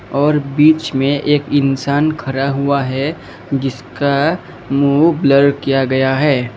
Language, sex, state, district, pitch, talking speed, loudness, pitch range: Hindi, male, Assam, Kamrup Metropolitan, 140 Hz, 130 wpm, -15 LUFS, 135-145 Hz